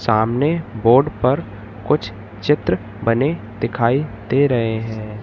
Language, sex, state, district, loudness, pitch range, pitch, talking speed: Hindi, male, Madhya Pradesh, Katni, -19 LUFS, 105-135 Hz, 115 Hz, 115 wpm